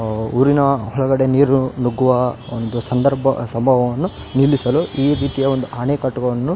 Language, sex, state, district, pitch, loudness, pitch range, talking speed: Kannada, male, Karnataka, Raichur, 130 Hz, -17 LUFS, 125-135 Hz, 130 wpm